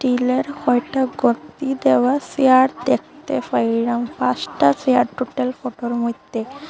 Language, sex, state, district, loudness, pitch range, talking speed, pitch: Bengali, female, Assam, Hailakandi, -19 LUFS, 235-265 Hz, 115 wpm, 250 Hz